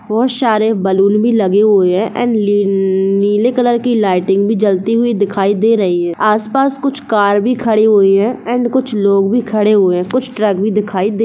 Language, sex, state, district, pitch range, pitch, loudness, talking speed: Hindi, female, Bihar, Gopalganj, 195-235 Hz, 210 Hz, -13 LUFS, 215 wpm